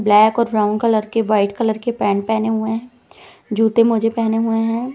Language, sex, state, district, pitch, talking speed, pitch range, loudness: Hindi, female, Uttar Pradesh, Jalaun, 225 Hz, 205 wpm, 215-230 Hz, -17 LUFS